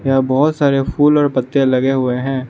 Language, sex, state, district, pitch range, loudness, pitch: Hindi, male, Arunachal Pradesh, Lower Dibang Valley, 130-145 Hz, -15 LUFS, 135 Hz